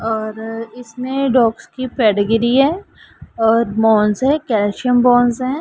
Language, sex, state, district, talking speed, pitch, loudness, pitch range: Hindi, female, Punjab, Pathankot, 130 wpm, 235 Hz, -16 LUFS, 220-255 Hz